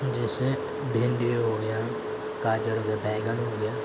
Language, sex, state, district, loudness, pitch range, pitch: Hindi, male, Bihar, Sitamarhi, -28 LUFS, 110-120 Hz, 110 Hz